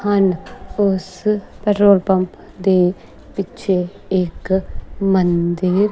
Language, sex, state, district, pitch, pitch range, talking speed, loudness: Punjabi, female, Punjab, Kapurthala, 190 Hz, 185-205 Hz, 80 wpm, -18 LUFS